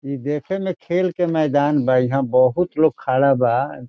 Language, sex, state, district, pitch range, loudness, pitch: Bhojpuri, male, Bihar, Saran, 130-170 Hz, -19 LUFS, 145 Hz